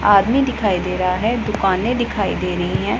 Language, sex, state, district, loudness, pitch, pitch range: Hindi, female, Punjab, Pathankot, -18 LUFS, 205 Hz, 190-240 Hz